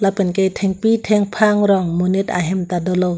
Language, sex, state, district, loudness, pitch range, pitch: Karbi, female, Assam, Karbi Anglong, -17 LUFS, 180-205 Hz, 195 Hz